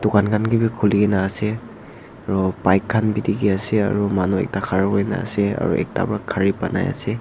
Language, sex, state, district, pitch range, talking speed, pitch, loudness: Nagamese, male, Nagaland, Dimapur, 95-105 Hz, 190 wpm, 105 Hz, -20 LUFS